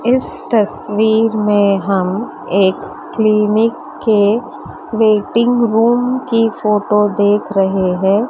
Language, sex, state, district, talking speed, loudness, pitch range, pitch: Hindi, female, Maharashtra, Mumbai Suburban, 100 wpm, -14 LUFS, 205-230 Hz, 215 Hz